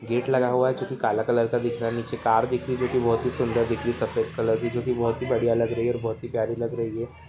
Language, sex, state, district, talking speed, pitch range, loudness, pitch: Hindi, male, Bihar, Muzaffarpur, 355 wpm, 115-125 Hz, -25 LUFS, 120 Hz